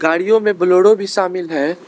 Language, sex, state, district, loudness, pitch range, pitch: Hindi, male, Arunachal Pradesh, Lower Dibang Valley, -14 LUFS, 180-210 Hz, 185 Hz